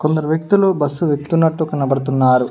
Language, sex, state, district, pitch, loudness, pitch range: Telugu, male, Telangana, Mahabubabad, 150 Hz, -16 LUFS, 135-160 Hz